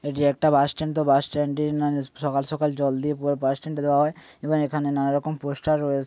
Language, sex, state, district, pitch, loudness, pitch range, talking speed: Bengali, male, West Bengal, Paschim Medinipur, 145 Hz, -24 LUFS, 140-150 Hz, 275 wpm